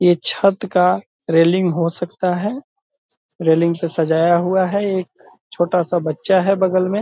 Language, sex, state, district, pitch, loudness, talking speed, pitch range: Hindi, male, Bihar, Purnia, 180 Hz, -17 LUFS, 160 wpm, 170-195 Hz